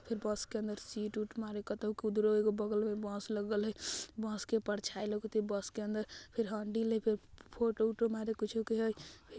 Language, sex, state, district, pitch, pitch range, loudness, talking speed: Bajjika, female, Bihar, Vaishali, 215 Hz, 210-220 Hz, -37 LUFS, 210 wpm